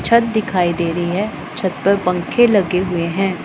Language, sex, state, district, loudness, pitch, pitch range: Hindi, female, Punjab, Pathankot, -17 LUFS, 190 Hz, 175-210 Hz